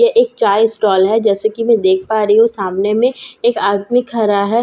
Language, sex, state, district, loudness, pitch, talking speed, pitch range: Hindi, female, Bihar, Katihar, -14 LUFS, 220 Hz, 245 wpm, 200-240 Hz